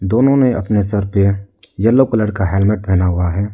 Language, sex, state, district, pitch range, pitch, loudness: Hindi, male, Arunachal Pradesh, Lower Dibang Valley, 95-115 Hz, 100 Hz, -15 LUFS